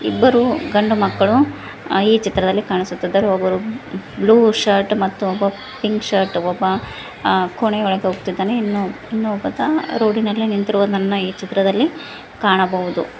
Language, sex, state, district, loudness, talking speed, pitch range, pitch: Kannada, female, Karnataka, Koppal, -18 LUFS, 110 wpm, 190-220 Hz, 200 Hz